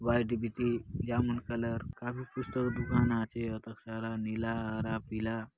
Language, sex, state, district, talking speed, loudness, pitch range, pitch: Halbi, male, Chhattisgarh, Bastar, 140 wpm, -34 LUFS, 115-120 Hz, 115 Hz